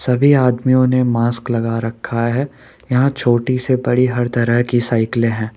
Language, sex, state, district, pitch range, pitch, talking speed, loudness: Hindi, male, Rajasthan, Jaipur, 115-130 Hz, 120 Hz, 170 wpm, -16 LUFS